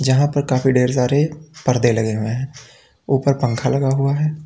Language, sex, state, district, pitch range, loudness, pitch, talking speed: Hindi, male, Uttar Pradesh, Lalitpur, 125-140 Hz, -18 LUFS, 135 Hz, 190 wpm